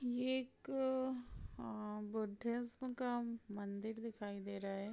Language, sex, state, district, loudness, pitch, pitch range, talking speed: Hindi, female, Bihar, East Champaran, -43 LUFS, 230 Hz, 205-250 Hz, 85 wpm